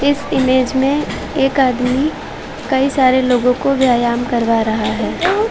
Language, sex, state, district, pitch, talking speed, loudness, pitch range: Hindi, female, Uttar Pradesh, Varanasi, 260 Hz, 140 wpm, -15 LUFS, 245-275 Hz